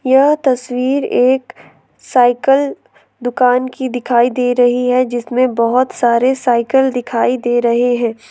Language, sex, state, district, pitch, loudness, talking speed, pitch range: Hindi, female, Jharkhand, Ranchi, 250 Hz, -14 LUFS, 130 wpm, 240-260 Hz